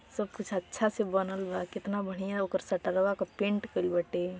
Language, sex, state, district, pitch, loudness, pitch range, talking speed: Bhojpuri, female, Uttar Pradesh, Gorakhpur, 195 Hz, -32 LUFS, 185-205 Hz, 175 wpm